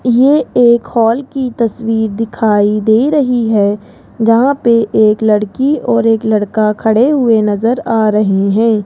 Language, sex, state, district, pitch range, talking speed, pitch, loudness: Hindi, female, Rajasthan, Jaipur, 215-245 Hz, 150 wpm, 225 Hz, -12 LUFS